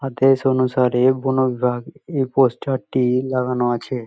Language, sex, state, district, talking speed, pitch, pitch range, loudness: Bengali, male, West Bengal, Malda, 135 wpm, 130 Hz, 125-135 Hz, -19 LUFS